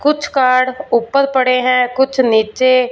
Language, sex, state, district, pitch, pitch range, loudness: Hindi, female, Punjab, Fazilka, 255 Hz, 250-270 Hz, -14 LUFS